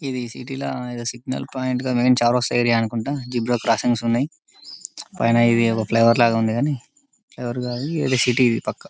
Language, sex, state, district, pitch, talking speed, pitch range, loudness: Telugu, male, Telangana, Karimnagar, 120 Hz, 155 wpm, 115-130 Hz, -21 LUFS